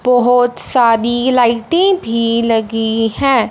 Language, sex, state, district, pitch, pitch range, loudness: Hindi, male, Punjab, Fazilka, 240 Hz, 230-250 Hz, -13 LUFS